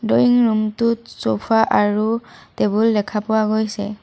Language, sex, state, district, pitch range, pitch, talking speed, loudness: Assamese, female, Assam, Sonitpur, 210-225 Hz, 220 Hz, 135 wpm, -18 LUFS